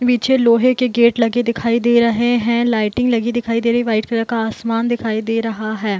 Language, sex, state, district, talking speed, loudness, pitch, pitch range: Hindi, female, Bihar, Gopalganj, 240 wpm, -16 LUFS, 235 Hz, 225-240 Hz